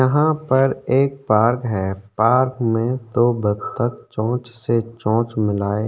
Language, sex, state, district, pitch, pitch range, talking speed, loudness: Hindi, male, Uttarakhand, Tehri Garhwal, 115 Hz, 110-130 Hz, 145 wpm, -20 LUFS